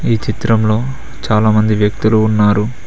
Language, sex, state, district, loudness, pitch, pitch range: Telugu, male, Telangana, Mahabubabad, -14 LUFS, 110 Hz, 105-115 Hz